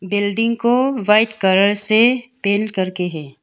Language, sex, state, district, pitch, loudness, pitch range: Hindi, female, Arunachal Pradesh, Longding, 205 Hz, -17 LUFS, 190-230 Hz